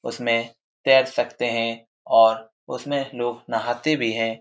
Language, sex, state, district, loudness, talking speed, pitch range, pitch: Hindi, male, Bihar, Saran, -22 LUFS, 135 wpm, 115-125 Hz, 115 Hz